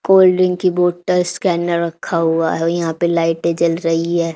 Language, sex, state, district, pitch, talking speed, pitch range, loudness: Hindi, female, Haryana, Charkhi Dadri, 170 Hz, 205 wpm, 165-180 Hz, -16 LUFS